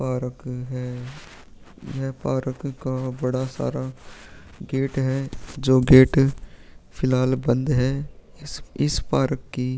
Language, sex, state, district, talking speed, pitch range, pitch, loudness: Hindi, male, Chhattisgarh, Sukma, 100 wpm, 125-135 Hz, 130 Hz, -23 LUFS